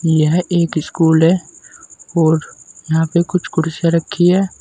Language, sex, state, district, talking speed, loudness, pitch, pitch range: Hindi, male, Uttar Pradesh, Saharanpur, 145 wpm, -16 LUFS, 165 Hz, 160-175 Hz